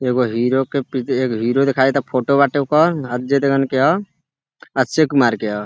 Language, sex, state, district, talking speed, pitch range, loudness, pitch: Bhojpuri, male, Uttar Pradesh, Deoria, 200 wpm, 125-140 Hz, -17 LUFS, 135 Hz